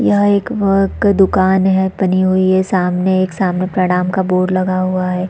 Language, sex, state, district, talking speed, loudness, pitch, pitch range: Hindi, female, Chhattisgarh, Bastar, 160 wpm, -14 LUFS, 185 Hz, 185-190 Hz